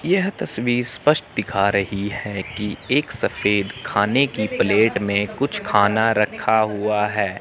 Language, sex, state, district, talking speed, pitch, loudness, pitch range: Hindi, male, Chandigarh, Chandigarh, 145 wpm, 105 Hz, -20 LUFS, 100-125 Hz